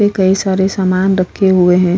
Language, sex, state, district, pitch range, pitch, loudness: Hindi, female, Uttar Pradesh, Hamirpur, 185-195 Hz, 190 Hz, -13 LUFS